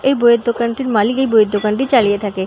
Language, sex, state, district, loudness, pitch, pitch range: Bengali, female, West Bengal, North 24 Parganas, -15 LUFS, 235 Hz, 210-250 Hz